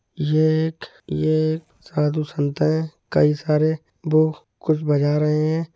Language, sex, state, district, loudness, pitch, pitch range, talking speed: Hindi, male, Uttar Pradesh, Etah, -21 LUFS, 155 Hz, 150-155 Hz, 145 wpm